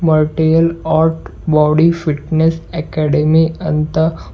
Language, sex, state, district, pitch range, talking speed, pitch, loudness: Kannada, male, Karnataka, Bidar, 155-160 Hz, 85 wpm, 160 Hz, -14 LUFS